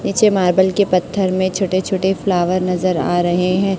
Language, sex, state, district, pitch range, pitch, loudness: Hindi, male, Chhattisgarh, Raipur, 180-195 Hz, 185 Hz, -16 LUFS